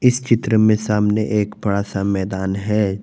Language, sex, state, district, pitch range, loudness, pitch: Hindi, male, Jharkhand, Garhwa, 100-110 Hz, -18 LUFS, 105 Hz